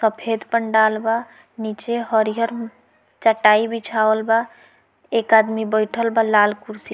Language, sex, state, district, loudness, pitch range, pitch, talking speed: Bhojpuri, female, Bihar, Muzaffarpur, -19 LUFS, 215-230 Hz, 220 Hz, 130 wpm